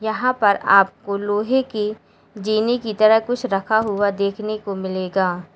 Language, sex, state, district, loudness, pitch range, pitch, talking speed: Hindi, female, Uttar Pradesh, Lalitpur, -19 LUFS, 195-220 Hz, 210 Hz, 160 wpm